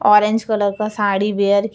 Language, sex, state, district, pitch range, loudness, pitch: Hindi, female, Uttar Pradesh, Varanasi, 200-215 Hz, -17 LUFS, 210 Hz